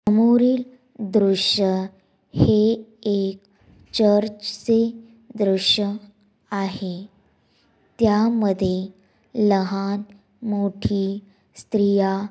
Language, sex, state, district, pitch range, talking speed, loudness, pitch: Marathi, female, Maharashtra, Dhule, 195-220 Hz, 60 wpm, -21 LUFS, 205 Hz